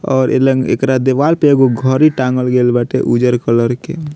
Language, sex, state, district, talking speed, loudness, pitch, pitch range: Bhojpuri, male, Bihar, Muzaffarpur, 200 wpm, -13 LUFS, 130 Hz, 125-135 Hz